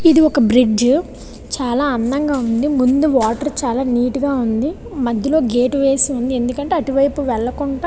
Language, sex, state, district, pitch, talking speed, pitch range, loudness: Telugu, female, Andhra Pradesh, Visakhapatnam, 270 Hz, 120 wpm, 245-285 Hz, -17 LUFS